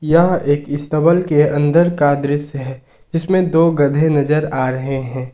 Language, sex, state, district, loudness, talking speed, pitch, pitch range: Hindi, male, Jharkhand, Ranchi, -16 LUFS, 170 wpm, 145 Hz, 140-165 Hz